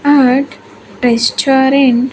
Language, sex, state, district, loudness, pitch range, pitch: English, female, Andhra Pradesh, Sri Satya Sai, -11 LUFS, 250-275 Hz, 265 Hz